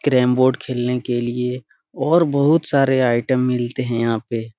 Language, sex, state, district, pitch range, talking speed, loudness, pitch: Hindi, male, Bihar, Araria, 120-135 Hz, 170 wpm, -19 LUFS, 125 Hz